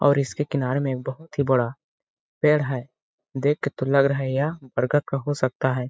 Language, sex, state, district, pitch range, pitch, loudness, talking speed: Hindi, male, Chhattisgarh, Balrampur, 130-145 Hz, 135 Hz, -24 LUFS, 225 wpm